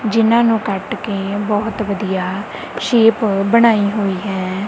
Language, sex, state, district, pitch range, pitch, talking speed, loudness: Punjabi, female, Punjab, Kapurthala, 195-225 Hz, 205 Hz, 130 wpm, -16 LUFS